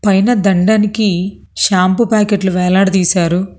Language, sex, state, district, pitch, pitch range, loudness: Telugu, female, Telangana, Hyderabad, 195 Hz, 185-210 Hz, -13 LUFS